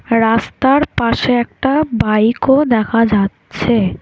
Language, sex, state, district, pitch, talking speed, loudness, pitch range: Bengali, female, West Bengal, Alipurduar, 235 Hz, 90 wpm, -14 LUFS, 225-265 Hz